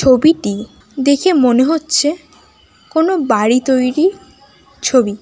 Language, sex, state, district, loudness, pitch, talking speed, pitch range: Bengali, female, West Bengal, Kolkata, -14 LUFS, 280 Hz, 90 wpm, 245-320 Hz